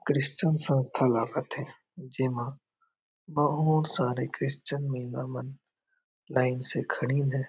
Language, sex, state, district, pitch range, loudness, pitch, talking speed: Chhattisgarhi, male, Chhattisgarh, Raigarh, 130-155 Hz, -29 LUFS, 135 Hz, 120 wpm